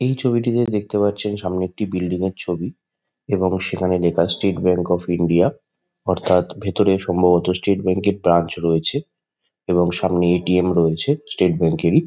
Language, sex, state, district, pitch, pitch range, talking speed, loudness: Bengali, male, West Bengal, Kolkata, 90 Hz, 90-100 Hz, 155 wpm, -19 LUFS